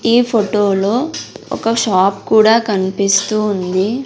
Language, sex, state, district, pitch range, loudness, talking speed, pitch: Telugu, female, Andhra Pradesh, Sri Satya Sai, 195-230 Hz, -14 LUFS, 120 wpm, 215 Hz